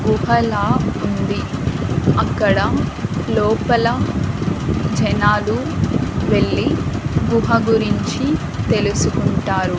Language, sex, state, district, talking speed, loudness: Telugu, female, Andhra Pradesh, Annamaya, 55 wpm, -18 LUFS